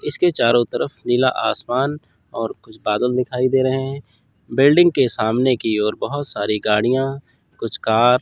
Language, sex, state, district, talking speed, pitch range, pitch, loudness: Hindi, male, Chandigarh, Chandigarh, 160 wpm, 110-135 Hz, 125 Hz, -19 LUFS